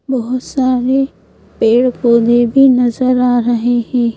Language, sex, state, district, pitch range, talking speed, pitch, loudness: Hindi, female, Madhya Pradesh, Bhopal, 240-255 Hz, 130 wpm, 245 Hz, -13 LUFS